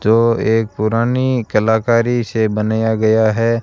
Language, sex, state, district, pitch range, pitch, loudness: Hindi, male, Rajasthan, Bikaner, 110-115 Hz, 110 Hz, -15 LUFS